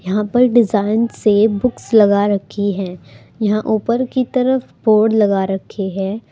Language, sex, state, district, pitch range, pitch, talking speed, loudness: Hindi, female, Uttar Pradesh, Saharanpur, 195-230 Hz, 210 Hz, 150 wpm, -16 LUFS